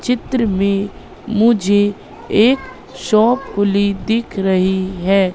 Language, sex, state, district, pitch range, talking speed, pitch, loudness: Hindi, female, Madhya Pradesh, Katni, 195-230 Hz, 100 wpm, 205 Hz, -16 LUFS